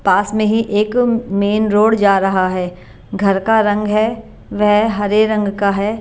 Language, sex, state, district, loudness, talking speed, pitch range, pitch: Hindi, female, Bihar, Katihar, -15 LUFS, 180 wpm, 200-220 Hz, 210 Hz